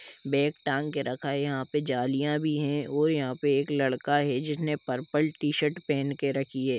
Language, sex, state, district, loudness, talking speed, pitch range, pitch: Hindi, male, Jharkhand, Jamtara, -28 LUFS, 210 wpm, 135-150 Hz, 145 Hz